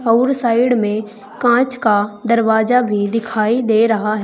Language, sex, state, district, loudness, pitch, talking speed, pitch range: Hindi, female, Uttar Pradesh, Saharanpur, -16 LUFS, 225 Hz, 140 wpm, 215-240 Hz